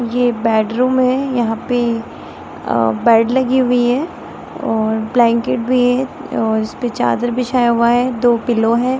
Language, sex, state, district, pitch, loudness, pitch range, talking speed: Hindi, female, Bihar, Muzaffarpur, 240 Hz, -16 LUFS, 230-250 Hz, 160 wpm